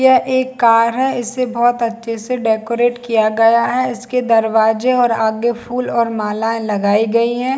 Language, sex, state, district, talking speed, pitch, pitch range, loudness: Hindi, female, Chhattisgarh, Bilaspur, 175 wpm, 235 Hz, 225-250 Hz, -15 LUFS